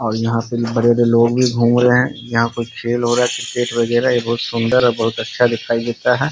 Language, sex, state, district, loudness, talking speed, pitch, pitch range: Hindi, male, Bihar, Muzaffarpur, -16 LUFS, 245 wpm, 120 Hz, 115-120 Hz